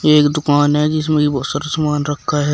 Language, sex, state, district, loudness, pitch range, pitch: Hindi, male, Uttar Pradesh, Shamli, -16 LUFS, 145-150 Hz, 150 Hz